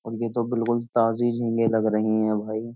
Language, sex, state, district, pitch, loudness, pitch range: Hindi, male, Uttar Pradesh, Jyotiba Phule Nagar, 115 Hz, -24 LUFS, 110-120 Hz